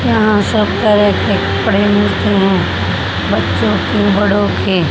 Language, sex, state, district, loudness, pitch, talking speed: Hindi, female, Haryana, Charkhi Dadri, -13 LUFS, 100 Hz, 135 wpm